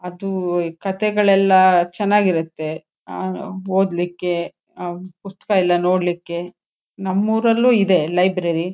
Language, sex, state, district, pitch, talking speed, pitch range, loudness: Kannada, female, Karnataka, Shimoga, 185 Hz, 110 wpm, 175-195 Hz, -19 LUFS